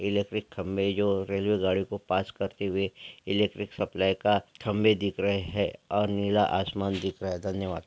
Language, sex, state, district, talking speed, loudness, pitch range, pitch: Hindi, male, Chhattisgarh, Bastar, 175 wpm, -28 LUFS, 95-105 Hz, 100 Hz